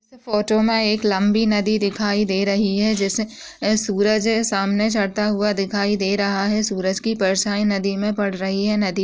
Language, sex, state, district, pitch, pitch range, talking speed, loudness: Hindi, female, Uttar Pradesh, Muzaffarnagar, 205 Hz, 200-215 Hz, 190 wpm, -20 LUFS